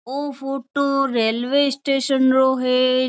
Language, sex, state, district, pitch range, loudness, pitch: Marwari, female, Rajasthan, Churu, 255-275 Hz, -19 LUFS, 270 Hz